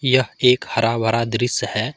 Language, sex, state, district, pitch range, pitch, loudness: Hindi, male, Jharkhand, Ranchi, 115-125 Hz, 120 Hz, -19 LUFS